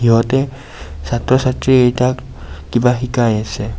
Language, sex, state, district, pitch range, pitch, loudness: Assamese, male, Assam, Kamrup Metropolitan, 105-130 Hz, 120 Hz, -16 LUFS